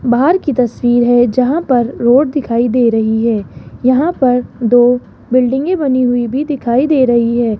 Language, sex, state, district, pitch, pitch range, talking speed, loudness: Hindi, female, Rajasthan, Jaipur, 245 Hz, 235-265 Hz, 180 wpm, -13 LUFS